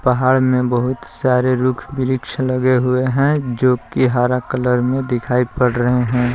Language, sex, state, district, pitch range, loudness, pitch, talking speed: Hindi, male, Jharkhand, Palamu, 125-130 Hz, -17 LUFS, 125 Hz, 170 wpm